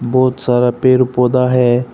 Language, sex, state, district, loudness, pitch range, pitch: Hindi, male, Arunachal Pradesh, Papum Pare, -13 LUFS, 125-130 Hz, 125 Hz